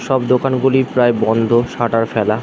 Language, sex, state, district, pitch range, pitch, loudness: Bengali, male, West Bengal, Dakshin Dinajpur, 115-130 Hz, 120 Hz, -15 LUFS